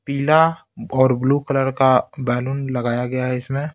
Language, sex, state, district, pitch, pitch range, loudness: Hindi, male, Bihar, Patna, 135 Hz, 125-140 Hz, -19 LUFS